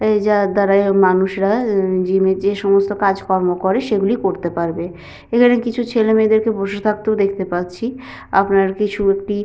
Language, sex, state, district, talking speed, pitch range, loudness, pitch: Bengali, female, West Bengal, Malda, 150 wpm, 190-215 Hz, -17 LUFS, 200 Hz